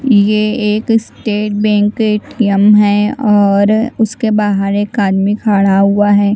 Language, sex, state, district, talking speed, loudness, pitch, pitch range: Hindi, female, Chandigarh, Chandigarh, 130 wpm, -12 LUFS, 210 Hz, 205-215 Hz